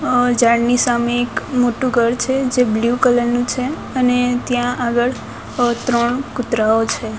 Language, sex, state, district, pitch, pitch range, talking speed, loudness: Gujarati, female, Gujarat, Gandhinagar, 245 Hz, 235-250 Hz, 160 wpm, -17 LUFS